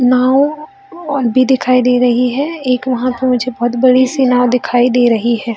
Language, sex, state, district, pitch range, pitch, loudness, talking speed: Hindi, female, Bihar, Jamui, 245-265 Hz, 255 Hz, -13 LUFS, 215 wpm